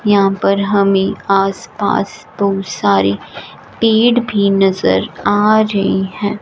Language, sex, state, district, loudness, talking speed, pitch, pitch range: Hindi, female, Punjab, Fazilka, -14 LUFS, 120 wpm, 195 Hz, 190-210 Hz